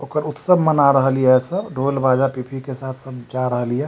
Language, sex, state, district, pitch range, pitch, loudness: Maithili, male, Bihar, Supaul, 130-140 Hz, 135 Hz, -18 LUFS